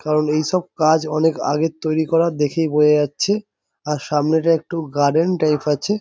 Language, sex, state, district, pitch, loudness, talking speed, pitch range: Bengali, male, West Bengal, Jhargram, 155 Hz, -18 LUFS, 180 wpm, 150-165 Hz